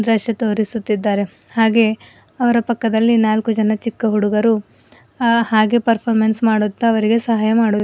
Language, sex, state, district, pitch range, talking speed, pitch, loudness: Kannada, female, Karnataka, Bidar, 215-230 Hz, 120 wpm, 225 Hz, -17 LUFS